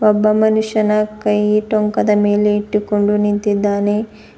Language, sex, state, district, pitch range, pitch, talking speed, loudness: Kannada, female, Karnataka, Bidar, 205-215 Hz, 210 Hz, 95 wpm, -16 LUFS